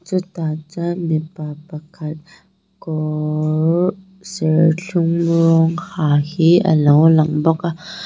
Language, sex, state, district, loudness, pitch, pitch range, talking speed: Mizo, female, Mizoram, Aizawl, -17 LUFS, 165 Hz, 155-175 Hz, 105 wpm